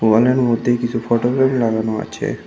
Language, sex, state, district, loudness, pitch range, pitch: Bengali, male, West Bengal, Cooch Behar, -17 LUFS, 110-125 Hz, 120 Hz